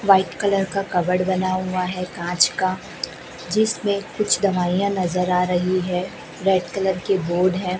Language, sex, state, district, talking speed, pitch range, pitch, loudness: Hindi, female, Chhattisgarh, Raipur, 160 wpm, 180-195 Hz, 185 Hz, -21 LUFS